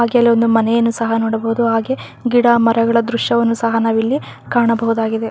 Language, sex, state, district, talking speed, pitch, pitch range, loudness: Kannada, female, Karnataka, Raichur, 160 wpm, 230 Hz, 225-235 Hz, -15 LUFS